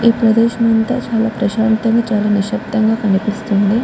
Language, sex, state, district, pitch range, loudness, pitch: Telugu, female, Andhra Pradesh, Guntur, 210-230 Hz, -15 LUFS, 225 Hz